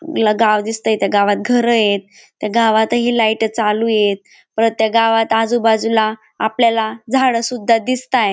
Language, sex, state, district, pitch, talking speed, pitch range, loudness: Marathi, female, Maharashtra, Dhule, 225 Hz, 145 wpm, 215-230 Hz, -15 LUFS